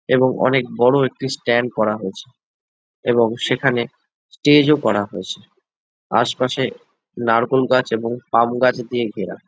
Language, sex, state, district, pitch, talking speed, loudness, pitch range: Bengali, male, West Bengal, Jalpaiguri, 120 Hz, 125 wpm, -18 LUFS, 115-130 Hz